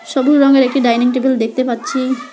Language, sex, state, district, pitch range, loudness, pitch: Bengali, female, West Bengal, Alipurduar, 245-270 Hz, -14 LUFS, 260 Hz